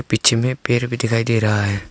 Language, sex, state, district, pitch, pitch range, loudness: Hindi, male, Arunachal Pradesh, Longding, 115 Hz, 110-120 Hz, -18 LUFS